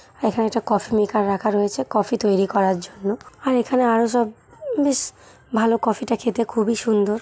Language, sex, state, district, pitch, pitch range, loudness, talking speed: Bengali, female, West Bengal, Malda, 225 Hz, 205-235 Hz, -21 LUFS, 190 wpm